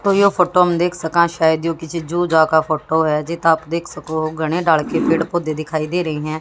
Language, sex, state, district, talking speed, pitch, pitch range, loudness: Hindi, female, Haryana, Jhajjar, 245 wpm, 160 Hz, 155-170 Hz, -18 LUFS